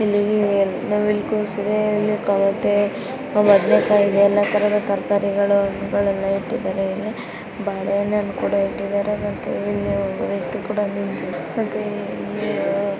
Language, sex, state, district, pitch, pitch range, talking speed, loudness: Kannada, female, Karnataka, Bijapur, 200 Hz, 195-210 Hz, 115 wpm, -20 LUFS